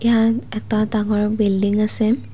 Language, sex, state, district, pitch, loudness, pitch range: Assamese, female, Assam, Kamrup Metropolitan, 215 Hz, -17 LUFS, 210-225 Hz